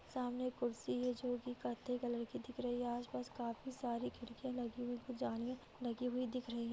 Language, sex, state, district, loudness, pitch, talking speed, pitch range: Hindi, female, Bihar, Muzaffarpur, -43 LUFS, 245 Hz, 205 wpm, 235-250 Hz